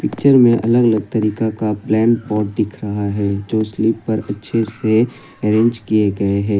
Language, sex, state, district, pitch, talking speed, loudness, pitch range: Hindi, male, Assam, Kamrup Metropolitan, 110 Hz, 180 wpm, -17 LUFS, 105-115 Hz